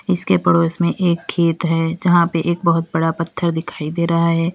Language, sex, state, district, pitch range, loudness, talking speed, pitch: Hindi, female, Uttar Pradesh, Lalitpur, 165-170 Hz, -17 LUFS, 210 wpm, 170 Hz